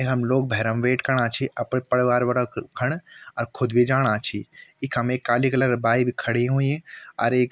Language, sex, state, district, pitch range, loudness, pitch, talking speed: Garhwali, male, Uttarakhand, Tehri Garhwal, 120-130 Hz, -23 LUFS, 125 Hz, 215 wpm